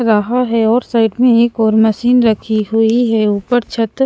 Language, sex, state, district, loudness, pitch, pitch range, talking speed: Hindi, female, Punjab, Pathankot, -13 LUFS, 225 Hz, 220-240 Hz, 205 wpm